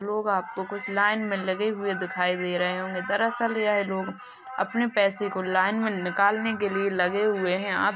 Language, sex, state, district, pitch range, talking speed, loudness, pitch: Hindi, male, Uttar Pradesh, Jalaun, 185-210 Hz, 195 wpm, -26 LUFS, 200 Hz